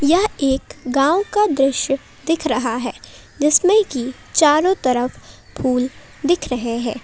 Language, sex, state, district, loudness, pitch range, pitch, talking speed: Hindi, female, Jharkhand, Palamu, -18 LUFS, 250-330 Hz, 275 Hz, 135 wpm